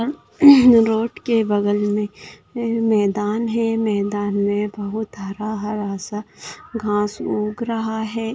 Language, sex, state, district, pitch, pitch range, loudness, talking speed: Hindi, female, Bihar, Gaya, 215 Hz, 205-230 Hz, -19 LUFS, 110 wpm